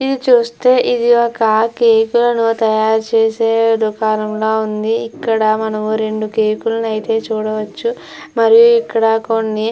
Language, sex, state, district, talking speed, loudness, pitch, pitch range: Telugu, female, Andhra Pradesh, Chittoor, 125 wpm, -14 LUFS, 225 Hz, 220-230 Hz